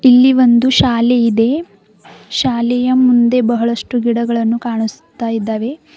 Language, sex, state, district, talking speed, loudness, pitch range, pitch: Kannada, female, Karnataka, Bidar, 100 wpm, -14 LUFS, 230-250 Hz, 235 Hz